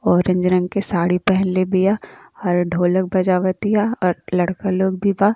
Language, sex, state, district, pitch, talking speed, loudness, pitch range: Bhojpuri, female, Uttar Pradesh, Ghazipur, 185 Hz, 170 wpm, -19 LUFS, 180-195 Hz